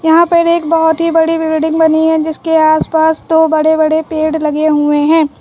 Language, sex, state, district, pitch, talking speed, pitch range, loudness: Hindi, female, Uttar Pradesh, Lucknow, 320 Hz, 200 wpm, 315-325 Hz, -11 LUFS